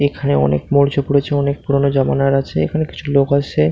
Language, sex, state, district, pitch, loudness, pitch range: Bengali, male, West Bengal, Malda, 140 Hz, -16 LUFS, 135-140 Hz